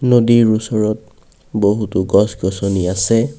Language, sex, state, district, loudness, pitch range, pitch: Assamese, male, Assam, Kamrup Metropolitan, -16 LUFS, 100-115 Hz, 105 Hz